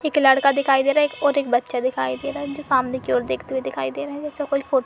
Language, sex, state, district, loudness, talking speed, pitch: Hindi, female, Uttar Pradesh, Budaun, -21 LUFS, 320 wpm, 270 Hz